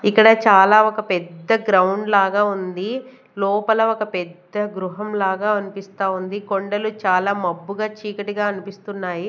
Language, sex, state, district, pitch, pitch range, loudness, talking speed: Telugu, female, Andhra Pradesh, Manyam, 200 Hz, 190-210 Hz, -19 LUFS, 125 wpm